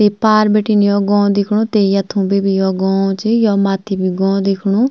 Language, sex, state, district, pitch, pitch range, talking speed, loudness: Garhwali, female, Uttarakhand, Tehri Garhwal, 200 Hz, 195-210 Hz, 220 wpm, -14 LUFS